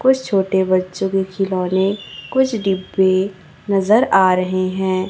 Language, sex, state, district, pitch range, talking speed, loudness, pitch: Hindi, male, Chhattisgarh, Raipur, 185-200 Hz, 130 wpm, -17 LUFS, 190 Hz